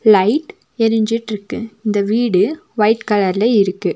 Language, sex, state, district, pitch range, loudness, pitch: Tamil, female, Tamil Nadu, Nilgiris, 205-230 Hz, -16 LUFS, 220 Hz